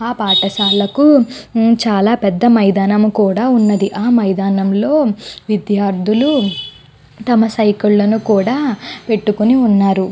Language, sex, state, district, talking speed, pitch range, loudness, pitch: Telugu, female, Andhra Pradesh, Guntur, 100 wpm, 195-235 Hz, -13 LUFS, 210 Hz